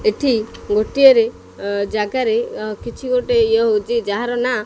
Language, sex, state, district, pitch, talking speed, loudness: Odia, male, Odisha, Khordha, 250 Hz, 140 wpm, -17 LUFS